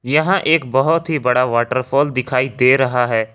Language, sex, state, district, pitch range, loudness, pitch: Hindi, male, Jharkhand, Ranchi, 125-150 Hz, -16 LUFS, 130 Hz